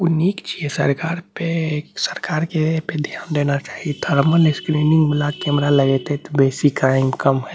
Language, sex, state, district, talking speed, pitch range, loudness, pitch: Maithili, male, Bihar, Saharsa, 185 wpm, 140-160 Hz, -19 LUFS, 150 Hz